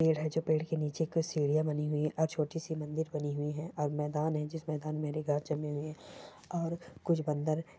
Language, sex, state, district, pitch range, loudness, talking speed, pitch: Hindi, female, Bihar, Bhagalpur, 150-160 Hz, -34 LUFS, 270 wpm, 155 Hz